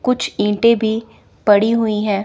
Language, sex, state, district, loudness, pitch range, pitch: Hindi, female, Chandigarh, Chandigarh, -16 LUFS, 210-230 Hz, 220 Hz